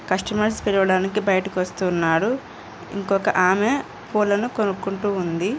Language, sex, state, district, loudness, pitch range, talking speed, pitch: Telugu, female, Andhra Pradesh, Anantapur, -21 LUFS, 185-210 Hz, 95 wpm, 195 Hz